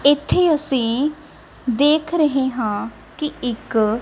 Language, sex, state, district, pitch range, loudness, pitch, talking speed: Punjabi, female, Punjab, Kapurthala, 235-300 Hz, -20 LUFS, 270 Hz, 105 wpm